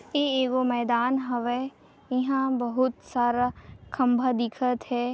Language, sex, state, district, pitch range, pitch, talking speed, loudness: Chhattisgarhi, female, Chhattisgarh, Sarguja, 245-260 Hz, 250 Hz, 115 wpm, -26 LUFS